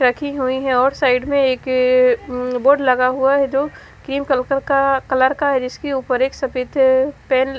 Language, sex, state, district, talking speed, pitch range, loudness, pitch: Hindi, female, Haryana, Charkhi Dadri, 205 wpm, 255-275 Hz, -17 LUFS, 265 Hz